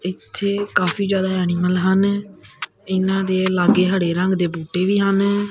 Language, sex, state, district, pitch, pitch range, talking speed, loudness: Punjabi, male, Punjab, Kapurthala, 190 Hz, 180-200 Hz, 155 wpm, -19 LUFS